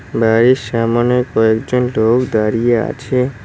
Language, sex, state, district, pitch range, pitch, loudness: Bengali, male, West Bengal, Cooch Behar, 110-125 Hz, 120 Hz, -15 LUFS